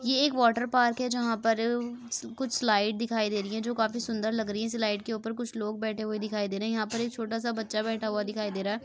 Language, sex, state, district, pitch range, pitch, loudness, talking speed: Hindi, female, Jharkhand, Sahebganj, 215-235 Hz, 225 Hz, -29 LUFS, 285 wpm